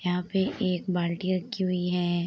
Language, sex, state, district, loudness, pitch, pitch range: Hindi, female, Bihar, Darbhanga, -28 LUFS, 180 Hz, 175-185 Hz